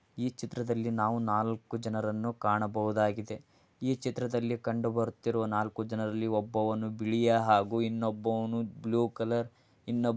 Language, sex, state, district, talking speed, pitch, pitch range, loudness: Kannada, male, Karnataka, Dharwad, 95 wpm, 115 Hz, 110-115 Hz, -32 LUFS